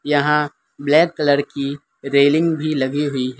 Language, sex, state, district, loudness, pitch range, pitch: Hindi, male, Gujarat, Valsad, -18 LUFS, 140-150 Hz, 145 Hz